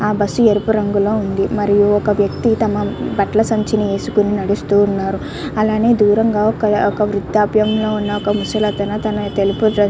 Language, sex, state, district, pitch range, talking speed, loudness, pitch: Telugu, female, Andhra Pradesh, Chittoor, 205-215 Hz, 135 wpm, -16 LUFS, 210 Hz